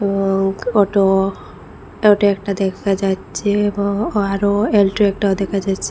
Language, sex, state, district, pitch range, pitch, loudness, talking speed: Bengali, female, Assam, Hailakandi, 195-205 Hz, 200 Hz, -17 LUFS, 120 wpm